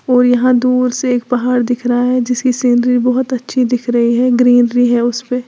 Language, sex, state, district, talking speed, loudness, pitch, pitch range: Hindi, female, Uttar Pradesh, Lalitpur, 220 wpm, -13 LUFS, 245 Hz, 245-250 Hz